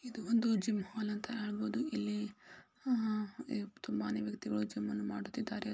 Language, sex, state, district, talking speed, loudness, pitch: Kannada, female, Karnataka, Belgaum, 155 wpm, -38 LUFS, 205 Hz